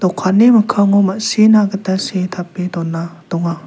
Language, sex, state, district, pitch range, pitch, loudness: Garo, male, Meghalaya, South Garo Hills, 175-205 Hz, 190 Hz, -14 LUFS